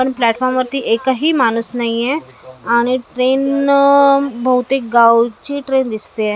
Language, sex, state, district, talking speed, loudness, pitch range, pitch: Marathi, female, Maharashtra, Mumbai Suburban, 130 wpm, -15 LUFS, 230-275 Hz, 255 Hz